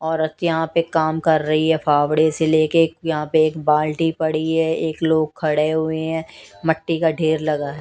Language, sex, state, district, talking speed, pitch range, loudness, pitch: Hindi, female, Odisha, Nuapada, 205 wpm, 155-160 Hz, -19 LUFS, 160 Hz